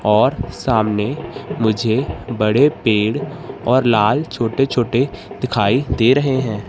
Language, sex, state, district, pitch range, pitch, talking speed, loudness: Hindi, male, Madhya Pradesh, Katni, 105-130 Hz, 115 Hz, 115 wpm, -17 LUFS